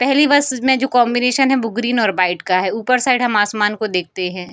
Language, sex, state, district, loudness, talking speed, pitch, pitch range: Hindi, female, Bihar, Darbhanga, -16 LUFS, 250 wpm, 240 Hz, 195-255 Hz